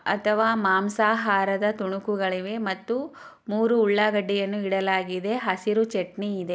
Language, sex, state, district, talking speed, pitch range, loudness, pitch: Kannada, female, Karnataka, Chamarajanagar, 100 wpm, 190-215 Hz, -24 LUFS, 205 Hz